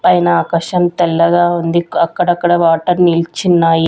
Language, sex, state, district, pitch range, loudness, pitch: Telugu, female, Andhra Pradesh, Sri Satya Sai, 170-175 Hz, -13 LUFS, 175 Hz